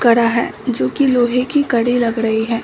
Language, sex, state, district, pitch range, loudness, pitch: Hindi, female, Bihar, Samastipur, 230-250 Hz, -16 LUFS, 235 Hz